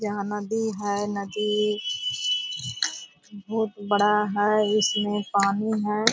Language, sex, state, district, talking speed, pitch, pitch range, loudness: Hindi, female, Bihar, Purnia, 100 wpm, 210 Hz, 200-210 Hz, -25 LUFS